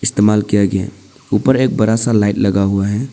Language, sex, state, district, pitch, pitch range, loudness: Hindi, male, Arunachal Pradesh, Papum Pare, 105 Hz, 100-120 Hz, -15 LUFS